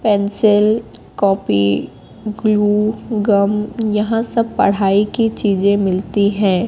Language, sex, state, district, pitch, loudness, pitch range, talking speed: Hindi, female, Madhya Pradesh, Katni, 210 Hz, -16 LUFS, 200-215 Hz, 100 wpm